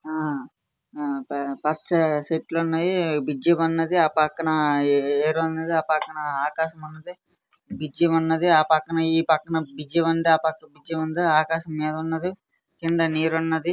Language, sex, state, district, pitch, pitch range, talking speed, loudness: Telugu, male, Andhra Pradesh, Srikakulam, 160 Hz, 155-165 Hz, 130 wpm, -23 LUFS